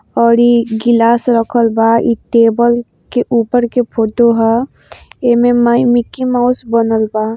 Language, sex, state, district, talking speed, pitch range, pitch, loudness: Hindi, female, Bihar, East Champaran, 165 wpm, 230-240 Hz, 235 Hz, -12 LUFS